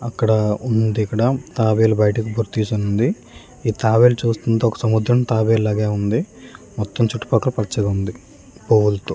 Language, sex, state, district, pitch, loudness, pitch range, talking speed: Telugu, male, Andhra Pradesh, Srikakulam, 110 Hz, -19 LUFS, 105-115 Hz, 145 wpm